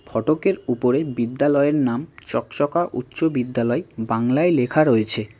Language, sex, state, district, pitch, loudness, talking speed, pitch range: Bengali, male, West Bengal, Cooch Behar, 125 Hz, -20 LUFS, 110 wpm, 120-150 Hz